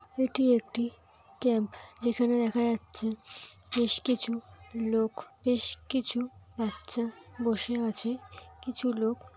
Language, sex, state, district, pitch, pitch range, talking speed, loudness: Bengali, female, West Bengal, North 24 Parganas, 235 Hz, 225-245 Hz, 100 wpm, -31 LUFS